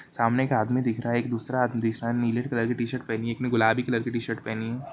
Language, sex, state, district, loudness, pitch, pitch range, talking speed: Hindi, male, Jharkhand, Jamtara, -27 LUFS, 120 Hz, 115-125 Hz, 290 wpm